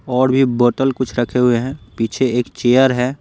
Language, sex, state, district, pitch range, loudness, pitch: Hindi, male, Bihar, Patna, 120-130 Hz, -16 LUFS, 125 Hz